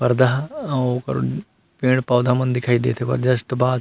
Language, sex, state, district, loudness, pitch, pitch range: Chhattisgarhi, male, Chhattisgarh, Rajnandgaon, -20 LUFS, 125 Hz, 125-130 Hz